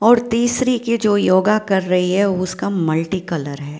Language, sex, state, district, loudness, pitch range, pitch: Hindi, female, Bihar, Purnia, -17 LUFS, 180-225 Hz, 190 Hz